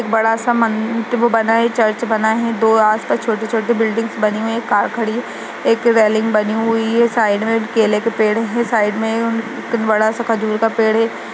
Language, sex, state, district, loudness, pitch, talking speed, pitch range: Hindi, female, Uttarakhand, Uttarkashi, -16 LUFS, 225 Hz, 240 wpm, 220-230 Hz